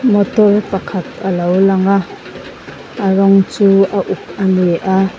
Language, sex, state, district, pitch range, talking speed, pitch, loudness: Mizo, female, Mizoram, Aizawl, 190-200 Hz, 140 wpm, 195 Hz, -13 LUFS